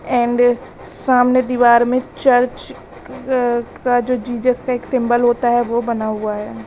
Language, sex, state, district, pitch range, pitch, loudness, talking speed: Hindi, female, Uttar Pradesh, Lalitpur, 240-250 Hz, 245 Hz, -16 LUFS, 155 wpm